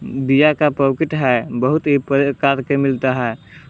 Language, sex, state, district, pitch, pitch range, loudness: Hindi, male, Jharkhand, Palamu, 140 Hz, 130-145 Hz, -17 LUFS